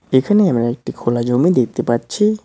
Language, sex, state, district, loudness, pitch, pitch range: Bengali, male, West Bengal, Cooch Behar, -16 LUFS, 125 Hz, 120-200 Hz